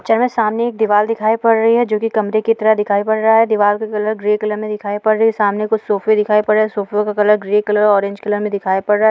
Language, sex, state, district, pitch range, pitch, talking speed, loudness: Hindi, female, Bihar, Jamui, 210-220 Hz, 215 Hz, 315 wpm, -15 LUFS